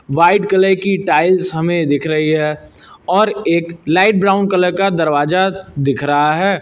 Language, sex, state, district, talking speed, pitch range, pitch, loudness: Hindi, male, Uttar Pradesh, Lucknow, 165 wpm, 150-190 Hz, 175 Hz, -14 LUFS